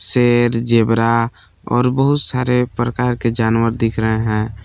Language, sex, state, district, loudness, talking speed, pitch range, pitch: Hindi, male, Jharkhand, Palamu, -16 LUFS, 140 wpm, 115-125 Hz, 115 Hz